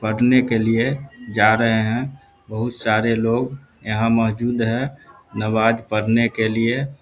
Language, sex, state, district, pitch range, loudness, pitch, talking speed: Hindi, male, Bihar, Samastipur, 110-125 Hz, -19 LUFS, 115 Hz, 145 wpm